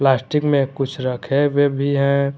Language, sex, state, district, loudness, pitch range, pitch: Hindi, male, Jharkhand, Garhwa, -19 LUFS, 135-140 Hz, 140 Hz